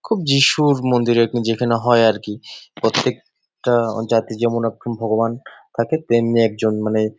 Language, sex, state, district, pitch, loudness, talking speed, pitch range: Bengali, male, West Bengal, Jalpaiguri, 115 Hz, -18 LUFS, 140 wpm, 110-120 Hz